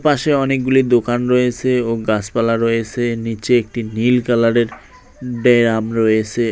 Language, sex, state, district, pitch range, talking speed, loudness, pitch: Bengali, male, West Bengal, Cooch Behar, 115-125 Hz, 120 wpm, -16 LUFS, 120 Hz